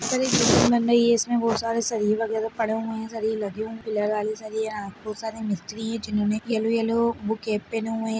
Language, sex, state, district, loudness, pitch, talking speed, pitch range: Hindi, female, Bihar, Begusarai, -24 LUFS, 225 Hz, 225 wpm, 215-230 Hz